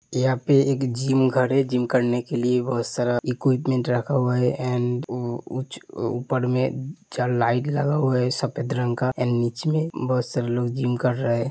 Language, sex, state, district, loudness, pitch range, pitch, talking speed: Hindi, male, Uttar Pradesh, Hamirpur, -23 LUFS, 120-130 Hz, 125 Hz, 210 wpm